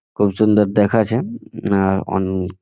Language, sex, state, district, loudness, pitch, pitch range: Bengali, male, West Bengal, Jhargram, -18 LUFS, 100 Hz, 95-105 Hz